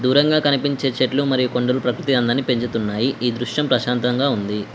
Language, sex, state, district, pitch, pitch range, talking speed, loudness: Telugu, female, Telangana, Mahabubabad, 125 Hz, 120-140 Hz, 150 wpm, -19 LUFS